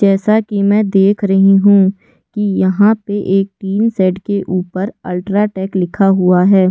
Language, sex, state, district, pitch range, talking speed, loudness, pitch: Hindi, female, Chhattisgarh, Kabirdham, 190-205 Hz, 160 wpm, -13 LUFS, 195 Hz